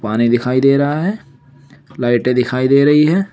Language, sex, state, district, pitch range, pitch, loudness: Hindi, male, Uttar Pradesh, Saharanpur, 125-145 Hz, 135 Hz, -14 LUFS